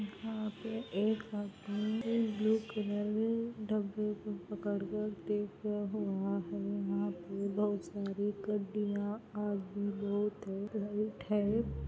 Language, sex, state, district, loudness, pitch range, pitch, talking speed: Hindi, female, Andhra Pradesh, Anantapur, -37 LUFS, 200-215 Hz, 205 Hz, 85 wpm